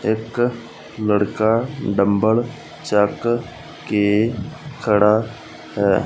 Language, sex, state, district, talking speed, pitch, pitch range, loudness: Punjabi, male, Punjab, Fazilka, 70 wpm, 105 Hz, 100-115 Hz, -19 LUFS